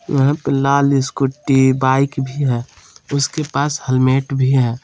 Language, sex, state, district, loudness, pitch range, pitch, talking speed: Hindi, male, Jharkhand, Palamu, -17 LUFS, 130-140 Hz, 135 Hz, 150 wpm